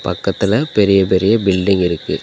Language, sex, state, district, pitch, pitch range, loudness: Tamil, male, Tamil Nadu, Nilgiris, 100 Hz, 95-105 Hz, -15 LUFS